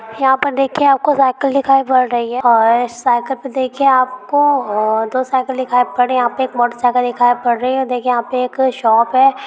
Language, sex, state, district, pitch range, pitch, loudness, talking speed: Hindi, female, Rajasthan, Nagaur, 245-270 Hz, 255 Hz, -15 LUFS, 210 wpm